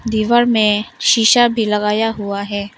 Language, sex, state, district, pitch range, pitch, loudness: Hindi, female, Arunachal Pradesh, Longding, 210-225 Hz, 215 Hz, -15 LUFS